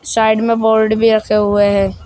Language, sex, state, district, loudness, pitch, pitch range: Hindi, male, Uttar Pradesh, Shamli, -13 LUFS, 220 Hz, 205-220 Hz